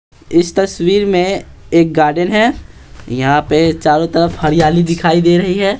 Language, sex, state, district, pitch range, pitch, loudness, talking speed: Hindi, male, Bihar, Patna, 160-185 Hz, 170 Hz, -13 LUFS, 155 wpm